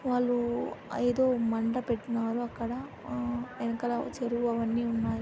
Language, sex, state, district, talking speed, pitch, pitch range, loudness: Telugu, female, Andhra Pradesh, Anantapur, 105 wpm, 235 Hz, 230-245 Hz, -31 LUFS